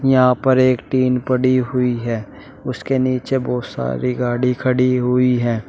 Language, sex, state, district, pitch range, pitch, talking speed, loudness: Hindi, male, Uttar Pradesh, Shamli, 125-130 Hz, 125 Hz, 160 wpm, -18 LUFS